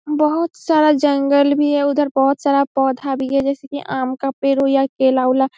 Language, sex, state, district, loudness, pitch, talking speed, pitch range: Hindi, female, Bihar, Saharsa, -17 LUFS, 275 Hz, 225 wpm, 270-290 Hz